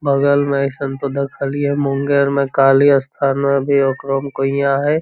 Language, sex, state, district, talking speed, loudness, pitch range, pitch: Magahi, female, Bihar, Lakhisarai, 205 wpm, -16 LUFS, 135-140 Hz, 140 Hz